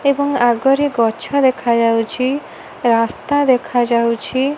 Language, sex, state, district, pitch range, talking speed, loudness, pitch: Odia, female, Odisha, Malkangiri, 235-280 Hz, 80 wpm, -16 LUFS, 255 Hz